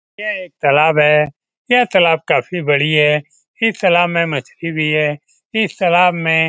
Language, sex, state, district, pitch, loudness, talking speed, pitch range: Hindi, male, Bihar, Lakhisarai, 165 Hz, -15 LUFS, 185 wpm, 150-185 Hz